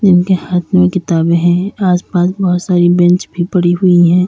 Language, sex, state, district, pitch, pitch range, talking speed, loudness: Hindi, female, Uttar Pradesh, Lalitpur, 180 Hz, 175-185 Hz, 180 wpm, -12 LUFS